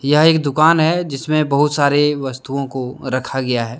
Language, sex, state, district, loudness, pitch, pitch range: Hindi, male, Jharkhand, Deoghar, -17 LUFS, 140 Hz, 130-150 Hz